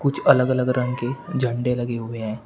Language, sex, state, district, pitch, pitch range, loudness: Hindi, male, Uttar Pradesh, Shamli, 125 Hz, 120-125 Hz, -22 LUFS